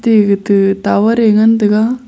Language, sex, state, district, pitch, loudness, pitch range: Wancho, female, Arunachal Pradesh, Longding, 215 Hz, -11 LUFS, 205-225 Hz